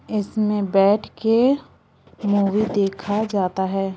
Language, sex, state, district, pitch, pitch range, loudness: Hindi, female, Chhattisgarh, Balrampur, 205 Hz, 195-215 Hz, -20 LUFS